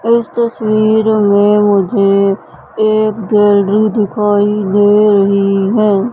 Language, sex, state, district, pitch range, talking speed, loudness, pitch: Hindi, female, Madhya Pradesh, Katni, 200-215 Hz, 100 wpm, -11 LUFS, 210 Hz